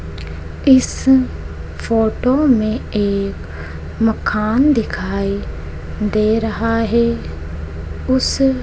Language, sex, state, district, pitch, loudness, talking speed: Hindi, female, Madhya Pradesh, Dhar, 215 Hz, -17 LUFS, 70 wpm